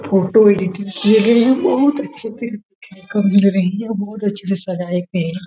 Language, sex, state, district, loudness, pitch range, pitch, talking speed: Hindi, male, Jharkhand, Jamtara, -16 LUFS, 190-220 Hz, 200 Hz, 175 wpm